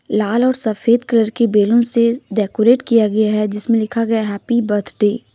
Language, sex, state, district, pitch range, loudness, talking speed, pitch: Hindi, female, Jharkhand, Deoghar, 210-235 Hz, -16 LUFS, 190 wpm, 225 Hz